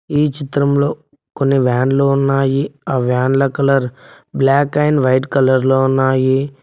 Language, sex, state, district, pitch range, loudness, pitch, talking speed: Telugu, male, Telangana, Mahabubabad, 130-140 Hz, -15 LUFS, 135 Hz, 135 wpm